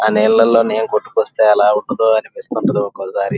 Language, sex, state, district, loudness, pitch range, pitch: Telugu, male, Andhra Pradesh, Krishna, -15 LUFS, 105-115 Hz, 110 Hz